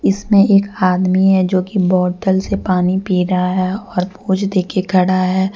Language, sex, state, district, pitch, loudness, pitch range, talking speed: Hindi, female, Jharkhand, Deoghar, 185 Hz, -15 LUFS, 185-195 Hz, 170 wpm